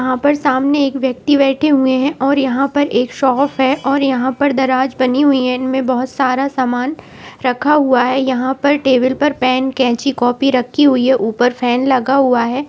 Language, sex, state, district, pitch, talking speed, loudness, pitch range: Hindi, female, Uttar Pradesh, Budaun, 265 Hz, 205 wpm, -14 LUFS, 255-275 Hz